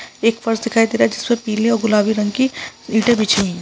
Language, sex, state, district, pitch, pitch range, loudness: Hindi, male, Bihar, Gaya, 225 Hz, 215-230 Hz, -17 LUFS